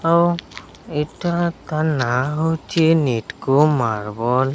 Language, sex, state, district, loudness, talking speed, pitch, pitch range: Odia, male, Odisha, Sambalpur, -20 LUFS, 90 wpm, 150 Hz, 130-165 Hz